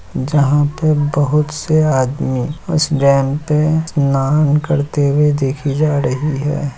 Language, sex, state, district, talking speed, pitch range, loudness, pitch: Hindi, male, Bihar, Kishanganj, 130 wpm, 140-150 Hz, -15 LUFS, 145 Hz